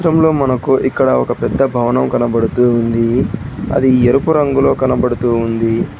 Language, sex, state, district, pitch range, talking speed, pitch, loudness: Telugu, male, Telangana, Hyderabad, 115-135 Hz, 130 wpm, 125 Hz, -14 LUFS